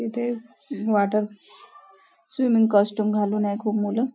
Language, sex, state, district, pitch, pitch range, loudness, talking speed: Marathi, female, Maharashtra, Nagpur, 220 Hz, 210-250 Hz, -23 LUFS, 115 wpm